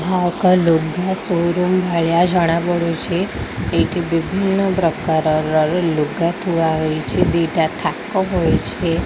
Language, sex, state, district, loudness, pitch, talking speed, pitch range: Odia, female, Odisha, Khordha, -18 LUFS, 170 Hz, 105 wpm, 160-180 Hz